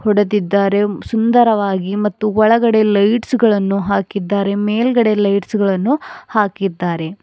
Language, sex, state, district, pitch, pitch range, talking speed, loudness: Kannada, female, Karnataka, Bidar, 205 Hz, 200-225 Hz, 90 wpm, -15 LUFS